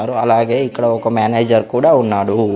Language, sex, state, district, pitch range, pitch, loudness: Telugu, male, Andhra Pradesh, Sri Satya Sai, 110-120 Hz, 115 Hz, -14 LUFS